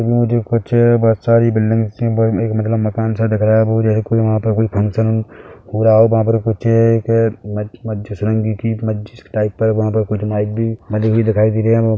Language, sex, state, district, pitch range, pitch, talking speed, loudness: Hindi, male, Chhattisgarh, Bilaspur, 110-115 Hz, 110 Hz, 140 wpm, -16 LUFS